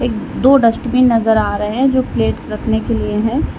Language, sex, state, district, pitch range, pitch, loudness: Hindi, female, Uttar Pradesh, Lalitpur, 220-255 Hz, 230 Hz, -15 LUFS